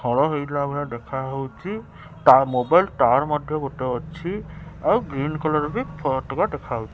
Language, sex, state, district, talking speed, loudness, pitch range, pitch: Odia, male, Odisha, Khordha, 145 wpm, -22 LUFS, 130-155 Hz, 145 Hz